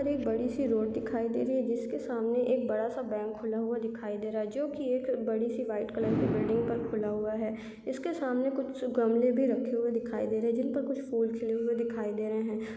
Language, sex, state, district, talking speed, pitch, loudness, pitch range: Hindi, female, Chhattisgarh, Raigarh, 250 wpm, 230 Hz, -31 LUFS, 220-250 Hz